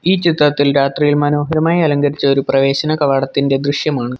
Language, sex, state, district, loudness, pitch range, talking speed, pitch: Malayalam, male, Kerala, Kollam, -14 LUFS, 135-150 Hz, 130 wpm, 145 Hz